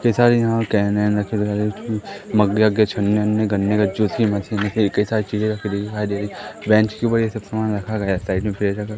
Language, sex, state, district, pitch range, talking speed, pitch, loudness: Hindi, male, Madhya Pradesh, Katni, 105-110 Hz, 205 wpm, 105 Hz, -20 LUFS